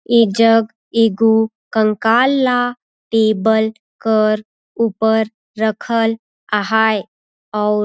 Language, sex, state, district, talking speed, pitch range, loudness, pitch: Surgujia, female, Chhattisgarh, Sarguja, 85 wpm, 215-225 Hz, -16 LUFS, 220 Hz